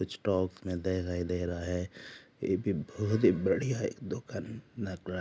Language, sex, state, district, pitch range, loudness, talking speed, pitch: Hindi, male, Jharkhand, Jamtara, 90-105 Hz, -33 LUFS, 160 wpm, 95 Hz